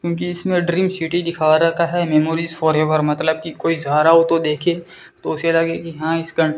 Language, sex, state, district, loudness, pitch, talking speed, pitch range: Hindi, male, Rajasthan, Bikaner, -18 LUFS, 165 Hz, 200 wpm, 160-170 Hz